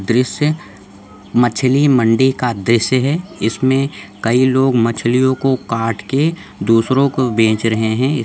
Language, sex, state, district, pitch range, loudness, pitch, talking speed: Hindi, male, Jharkhand, Sahebganj, 115-135 Hz, -15 LUFS, 125 Hz, 130 wpm